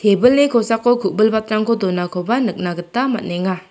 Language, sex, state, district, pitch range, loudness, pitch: Garo, female, Meghalaya, South Garo Hills, 185-235 Hz, -17 LUFS, 215 Hz